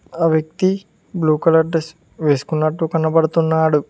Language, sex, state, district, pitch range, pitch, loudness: Telugu, male, Telangana, Mahabubabad, 155-165 Hz, 160 Hz, -18 LUFS